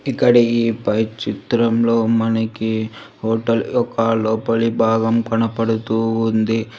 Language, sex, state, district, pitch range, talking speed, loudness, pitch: Telugu, female, Telangana, Hyderabad, 110-115 Hz, 95 wpm, -18 LUFS, 115 Hz